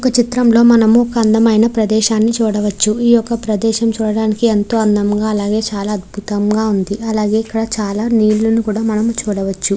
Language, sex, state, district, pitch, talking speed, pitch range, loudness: Telugu, female, Andhra Pradesh, Krishna, 220 Hz, 145 wpm, 210-225 Hz, -14 LUFS